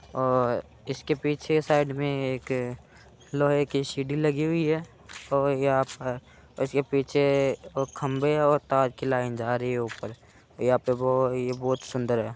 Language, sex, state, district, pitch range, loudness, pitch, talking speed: Hindi, male, Bihar, Begusarai, 125-145 Hz, -27 LUFS, 135 Hz, 165 wpm